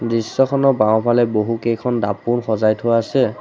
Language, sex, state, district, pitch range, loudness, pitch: Assamese, male, Assam, Sonitpur, 110-120 Hz, -17 LUFS, 115 Hz